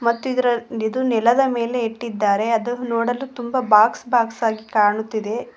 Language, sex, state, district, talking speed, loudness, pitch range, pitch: Kannada, female, Karnataka, Koppal, 140 wpm, -20 LUFS, 220-245 Hz, 235 Hz